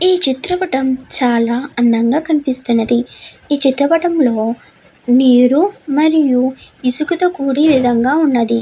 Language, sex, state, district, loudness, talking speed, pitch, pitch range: Telugu, female, Andhra Pradesh, Chittoor, -14 LUFS, 105 wpm, 265 Hz, 245-305 Hz